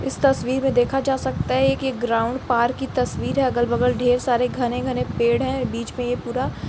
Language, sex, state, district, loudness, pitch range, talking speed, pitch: Hindi, female, Uttar Pradesh, Jalaun, -21 LUFS, 240-265 Hz, 225 wpm, 250 Hz